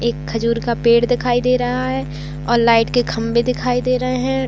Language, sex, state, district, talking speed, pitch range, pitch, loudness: Hindi, female, Chhattisgarh, Raigarh, 215 wpm, 145-240 Hz, 230 Hz, -17 LUFS